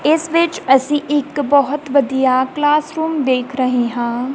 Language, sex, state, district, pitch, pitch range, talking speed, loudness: Punjabi, female, Punjab, Kapurthala, 285 Hz, 255-295 Hz, 150 wpm, -16 LUFS